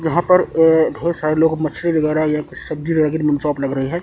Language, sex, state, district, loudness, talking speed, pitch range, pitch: Hindi, male, Chandigarh, Chandigarh, -17 LUFS, 240 wpm, 150-165 Hz, 155 Hz